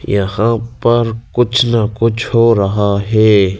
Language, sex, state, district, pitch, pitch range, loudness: Hindi, male, Madhya Pradesh, Bhopal, 115 Hz, 105-115 Hz, -13 LUFS